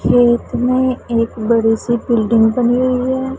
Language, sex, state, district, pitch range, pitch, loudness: Hindi, female, Punjab, Pathankot, 230-255 Hz, 240 Hz, -15 LUFS